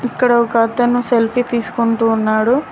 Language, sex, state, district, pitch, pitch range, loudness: Telugu, female, Telangana, Mahabubabad, 235 Hz, 230-245 Hz, -15 LUFS